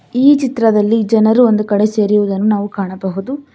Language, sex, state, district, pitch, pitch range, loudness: Kannada, female, Karnataka, Bangalore, 215 Hz, 205-240 Hz, -13 LUFS